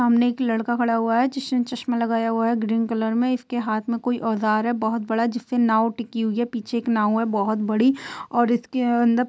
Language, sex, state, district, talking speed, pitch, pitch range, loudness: Hindi, female, Bihar, East Champaran, 240 wpm, 235 Hz, 225-240 Hz, -22 LUFS